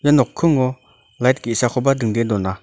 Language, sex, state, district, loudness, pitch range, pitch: Garo, male, Meghalaya, North Garo Hills, -18 LUFS, 115-135 Hz, 125 Hz